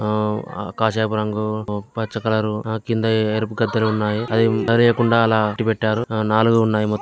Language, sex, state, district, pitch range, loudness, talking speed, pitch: Telugu, male, Telangana, Karimnagar, 105-115 Hz, -20 LUFS, 160 wpm, 110 Hz